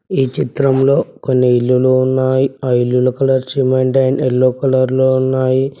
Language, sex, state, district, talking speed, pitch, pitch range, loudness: Telugu, male, Telangana, Mahabubabad, 145 wpm, 130 Hz, 130-135 Hz, -14 LUFS